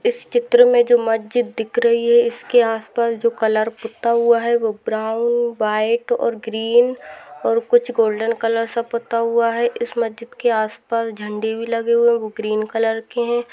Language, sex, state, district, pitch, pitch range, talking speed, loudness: Hindi, female, Rajasthan, Nagaur, 230 Hz, 225-240 Hz, 195 wpm, -18 LUFS